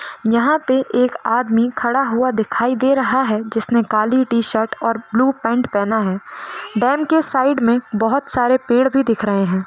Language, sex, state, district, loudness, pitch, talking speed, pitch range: Hindi, female, Rajasthan, Nagaur, -17 LUFS, 240 Hz, 185 wpm, 225-260 Hz